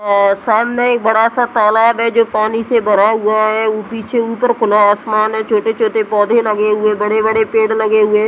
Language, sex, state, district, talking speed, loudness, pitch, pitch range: Hindi, female, Bihar, Muzaffarpur, 190 wpm, -13 LUFS, 220 Hz, 215-225 Hz